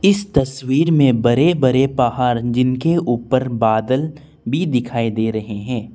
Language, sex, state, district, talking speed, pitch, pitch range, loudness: Hindi, male, Arunachal Pradesh, Lower Dibang Valley, 140 wpm, 130 Hz, 120-145 Hz, -17 LUFS